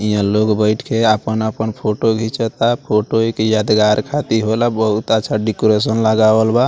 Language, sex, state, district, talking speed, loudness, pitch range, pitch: Bhojpuri, male, Bihar, Muzaffarpur, 155 wpm, -16 LUFS, 105-115 Hz, 110 Hz